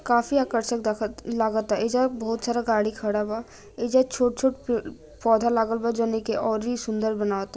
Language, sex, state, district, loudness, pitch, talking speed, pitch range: Bhojpuri, female, Bihar, Gopalganj, -25 LUFS, 230 Hz, 150 wpm, 220-240 Hz